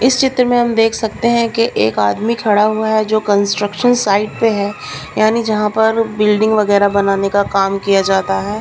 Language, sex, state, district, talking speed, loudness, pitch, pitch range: Hindi, female, Bihar, Katihar, 200 wpm, -14 LUFS, 215 Hz, 200-225 Hz